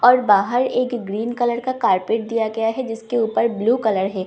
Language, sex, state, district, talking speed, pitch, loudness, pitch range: Hindi, female, Bihar, Katihar, 210 wpm, 230 Hz, -20 LUFS, 215-245 Hz